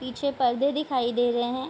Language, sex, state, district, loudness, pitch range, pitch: Hindi, female, Bihar, Darbhanga, -25 LUFS, 240-280 Hz, 255 Hz